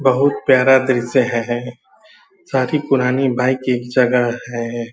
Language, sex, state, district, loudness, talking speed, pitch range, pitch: Hindi, female, Bihar, Purnia, -17 LUFS, 135 wpm, 120-130 Hz, 125 Hz